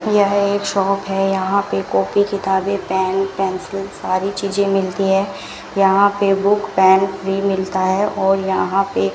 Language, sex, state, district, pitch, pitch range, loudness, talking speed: Hindi, female, Rajasthan, Bikaner, 195 Hz, 190-200 Hz, -17 LUFS, 165 wpm